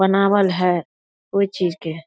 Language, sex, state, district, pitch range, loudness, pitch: Hindi, female, Bihar, Darbhanga, 175-195 Hz, -19 LUFS, 185 Hz